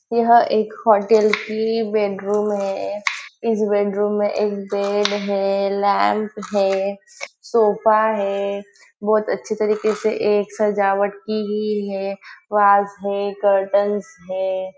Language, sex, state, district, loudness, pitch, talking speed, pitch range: Hindi, female, Maharashtra, Nagpur, -19 LUFS, 205 Hz, 120 wpm, 200-215 Hz